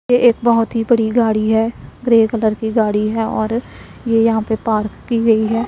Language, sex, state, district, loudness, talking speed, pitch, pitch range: Hindi, male, Punjab, Pathankot, -16 LUFS, 210 wpm, 225 Hz, 220-230 Hz